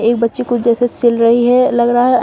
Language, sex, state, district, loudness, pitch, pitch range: Hindi, female, Uttar Pradesh, Shamli, -13 LUFS, 240 Hz, 235-245 Hz